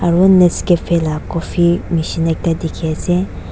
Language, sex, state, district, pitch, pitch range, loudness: Nagamese, female, Nagaland, Dimapur, 170 Hz, 165-175 Hz, -15 LUFS